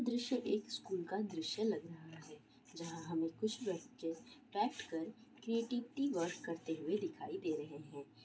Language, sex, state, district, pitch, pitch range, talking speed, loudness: Maithili, female, Bihar, Araria, 195 Hz, 165-245 Hz, 165 wpm, -41 LUFS